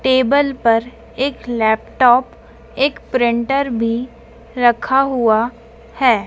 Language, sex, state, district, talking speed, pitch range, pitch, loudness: Hindi, female, Madhya Pradesh, Dhar, 95 wpm, 230-260 Hz, 235 Hz, -16 LUFS